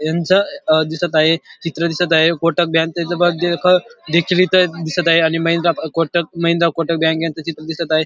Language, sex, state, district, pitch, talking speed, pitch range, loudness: Marathi, male, Maharashtra, Dhule, 170 Hz, 165 wpm, 160-175 Hz, -16 LUFS